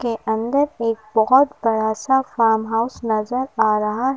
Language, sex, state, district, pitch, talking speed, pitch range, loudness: Hindi, female, Madhya Pradesh, Bhopal, 225 Hz, 145 wpm, 220-260 Hz, -19 LUFS